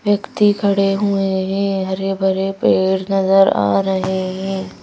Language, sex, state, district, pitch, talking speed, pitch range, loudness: Hindi, female, Madhya Pradesh, Bhopal, 195 Hz, 135 wpm, 190-195 Hz, -17 LUFS